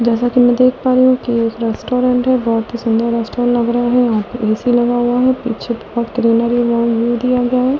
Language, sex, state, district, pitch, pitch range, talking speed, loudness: Hindi, female, Delhi, New Delhi, 240 Hz, 235-250 Hz, 225 wpm, -15 LUFS